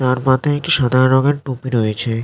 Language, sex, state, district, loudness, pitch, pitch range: Bengali, male, West Bengal, North 24 Parganas, -16 LUFS, 130 Hz, 125-140 Hz